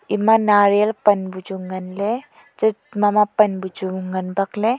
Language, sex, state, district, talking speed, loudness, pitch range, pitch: Wancho, female, Arunachal Pradesh, Longding, 140 wpm, -19 LUFS, 190-215 Hz, 205 Hz